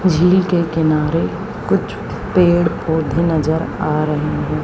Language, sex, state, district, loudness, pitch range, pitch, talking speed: Hindi, female, Haryana, Charkhi Dadri, -17 LUFS, 155-175 Hz, 160 Hz, 130 wpm